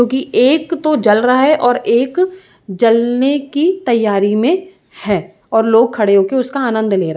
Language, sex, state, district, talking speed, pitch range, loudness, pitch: Hindi, female, Uttar Pradesh, Jyotiba Phule Nagar, 190 wpm, 225-290 Hz, -14 LUFS, 245 Hz